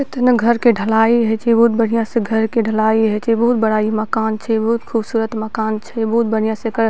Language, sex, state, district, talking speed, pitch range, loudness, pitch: Maithili, female, Bihar, Purnia, 245 wpm, 220-230 Hz, -16 LUFS, 225 Hz